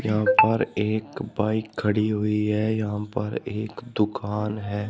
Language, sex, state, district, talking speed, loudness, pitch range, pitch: Hindi, male, Uttar Pradesh, Shamli, 145 wpm, -25 LUFS, 105-110 Hz, 105 Hz